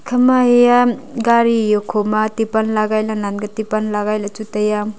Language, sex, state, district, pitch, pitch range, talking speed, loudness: Wancho, female, Arunachal Pradesh, Longding, 215 Hz, 210-235 Hz, 170 wpm, -16 LUFS